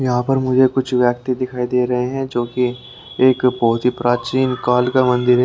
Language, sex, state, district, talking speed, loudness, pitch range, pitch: Hindi, male, Haryana, Rohtak, 210 wpm, -17 LUFS, 125-130 Hz, 125 Hz